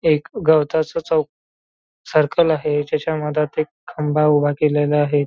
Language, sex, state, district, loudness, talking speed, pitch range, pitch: Marathi, male, Maharashtra, Nagpur, -19 LUFS, 135 wpm, 150-160 Hz, 150 Hz